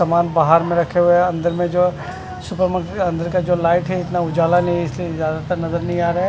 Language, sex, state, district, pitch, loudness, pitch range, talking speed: Hindi, male, Punjab, Fazilka, 175 Hz, -18 LUFS, 170-180 Hz, 255 wpm